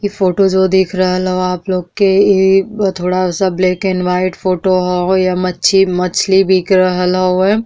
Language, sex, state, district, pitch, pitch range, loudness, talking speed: Bhojpuri, female, Uttar Pradesh, Deoria, 185 Hz, 185-190 Hz, -13 LUFS, 190 wpm